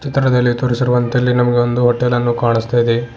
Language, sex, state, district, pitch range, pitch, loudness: Kannada, male, Karnataka, Bidar, 120-125 Hz, 120 Hz, -15 LUFS